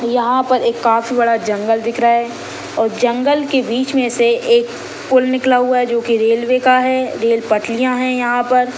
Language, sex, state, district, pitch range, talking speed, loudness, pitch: Hindi, female, Chhattisgarh, Sukma, 235-255 Hz, 200 wpm, -15 LUFS, 245 Hz